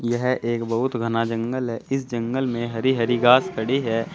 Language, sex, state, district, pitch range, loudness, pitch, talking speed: Hindi, male, Uttar Pradesh, Saharanpur, 115-130 Hz, -22 LUFS, 120 Hz, 200 wpm